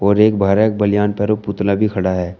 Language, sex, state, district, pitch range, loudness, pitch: Hindi, male, Uttar Pradesh, Shamli, 100-105 Hz, -16 LUFS, 100 Hz